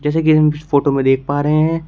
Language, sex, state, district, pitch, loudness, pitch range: Hindi, male, Uttar Pradesh, Shamli, 150 Hz, -15 LUFS, 140-155 Hz